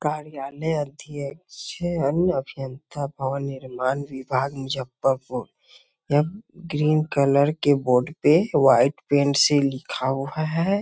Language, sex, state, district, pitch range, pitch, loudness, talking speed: Hindi, male, Bihar, Muzaffarpur, 135-155 Hz, 140 Hz, -23 LUFS, 135 wpm